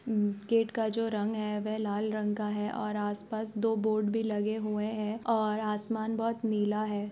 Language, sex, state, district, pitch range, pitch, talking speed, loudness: Hindi, female, Bihar, Kishanganj, 210-220 Hz, 215 Hz, 210 wpm, -31 LUFS